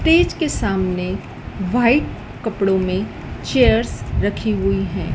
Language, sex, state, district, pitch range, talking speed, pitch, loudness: Hindi, female, Madhya Pradesh, Dhar, 190-235 Hz, 115 wpm, 195 Hz, -19 LUFS